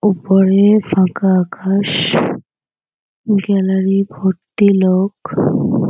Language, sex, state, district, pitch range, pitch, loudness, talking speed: Bengali, female, West Bengal, North 24 Parganas, 190-200 Hz, 195 Hz, -14 LUFS, 70 wpm